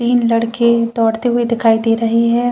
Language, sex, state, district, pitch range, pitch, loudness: Hindi, female, Chhattisgarh, Bastar, 230-235 Hz, 235 Hz, -14 LUFS